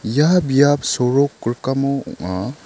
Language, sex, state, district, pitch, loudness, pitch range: Garo, male, Meghalaya, South Garo Hills, 135 Hz, -18 LUFS, 125-140 Hz